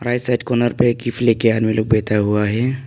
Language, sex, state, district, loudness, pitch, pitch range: Hindi, male, Arunachal Pradesh, Papum Pare, -17 LUFS, 115 Hz, 110-120 Hz